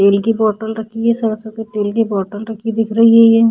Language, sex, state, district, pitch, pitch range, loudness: Hindi, female, Bihar, Vaishali, 220 Hz, 215-225 Hz, -15 LUFS